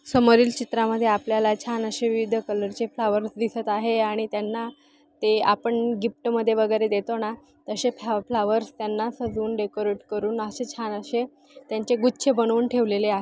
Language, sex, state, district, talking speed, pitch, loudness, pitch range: Marathi, female, Maharashtra, Pune, 155 wpm, 225 Hz, -24 LUFS, 215-235 Hz